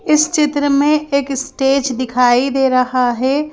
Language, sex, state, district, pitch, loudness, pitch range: Hindi, female, Madhya Pradesh, Bhopal, 275 Hz, -15 LUFS, 255-290 Hz